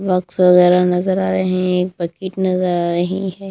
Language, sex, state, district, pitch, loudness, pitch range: Hindi, female, Punjab, Kapurthala, 185 Hz, -16 LUFS, 180-190 Hz